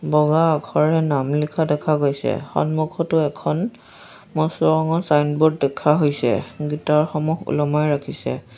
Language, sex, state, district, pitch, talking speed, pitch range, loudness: Assamese, female, Assam, Sonitpur, 150 Hz, 120 wpm, 145-160 Hz, -20 LUFS